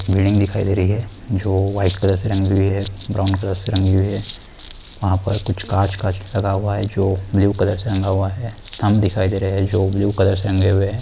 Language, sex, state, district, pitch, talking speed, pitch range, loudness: Hindi, male, Chhattisgarh, Korba, 100 Hz, 240 wpm, 95-100 Hz, -19 LUFS